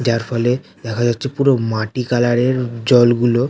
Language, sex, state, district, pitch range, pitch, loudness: Bengali, male, West Bengal, North 24 Parganas, 115-125 Hz, 120 Hz, -17 LUFS